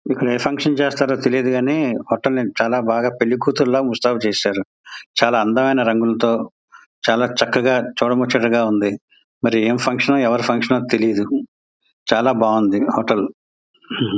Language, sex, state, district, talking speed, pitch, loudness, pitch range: Telugu, male, Andhra Pradesh, Visakhapatnam, 140 wpm, 125 Hz, -18 LUFS, 115-130 Hz